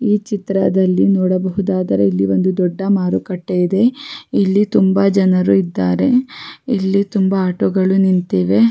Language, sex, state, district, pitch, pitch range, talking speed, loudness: Kannada, female, Karnataka, Raichur, 190 Hz, 180-200 Hz, 115 wpm, -15 LUFS